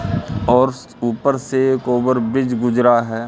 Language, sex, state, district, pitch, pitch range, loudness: Hindi, male, Madhya Pradesh, Katni, 125 Hz, 120-130 Hz, -17 LUFS